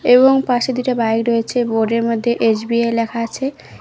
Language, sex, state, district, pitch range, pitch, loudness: Bengali, female, West Bengal, Cooch Behar, 230-250 Hz, 235 Hz, -17 LUFS